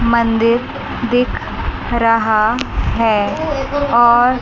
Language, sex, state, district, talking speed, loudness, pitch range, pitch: Hindi, male, Chandigarh, Chandigarh, 70 wpm, -15 LUFS, 230-250 Hz, 235 Hz